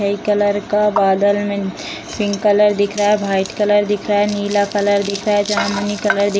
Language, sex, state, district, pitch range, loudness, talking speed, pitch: Hindi, female, Bihar, Sitamarhi, 200-210 Hz, -16 LUFS, 225 wpm, 205 Hz